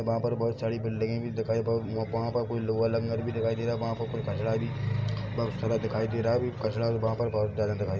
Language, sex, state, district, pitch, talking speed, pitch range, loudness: Hindi, male, Chhattisgarh, Bilaspur, 115 Hz, 255 wpm, 110-115 Hz, -30 LUFS